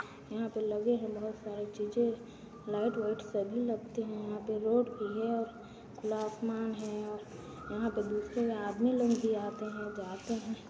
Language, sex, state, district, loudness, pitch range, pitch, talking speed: Hindi, female, Chhattisgarh, Sarguja, -35 LUFS, 210-230 Hz, 220 Hz, 180 wpm